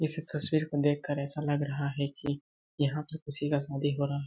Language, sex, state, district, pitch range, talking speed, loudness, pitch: Hindi, male, Chhattisgarh, Balrampur, 140-150 Hz, 225 wpm, -32 LUFS, 145 Hz